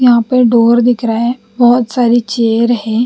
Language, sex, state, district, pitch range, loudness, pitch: Hindi, female, Bihar, Patna, 230-245 Hz, -11 LUFS, 240 Hz